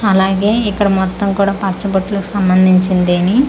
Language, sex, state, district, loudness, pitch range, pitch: Telugu, female, Andhra Pradesh, Manyam, -14 LUFS, 185-200 Hz, 195 Hz